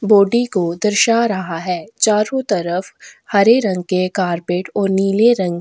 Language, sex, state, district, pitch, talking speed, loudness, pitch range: Hindi, female, Chhattisgarh, Korba, 195 Hz, 150 wpm, -16 LUFS, 180-215 Hz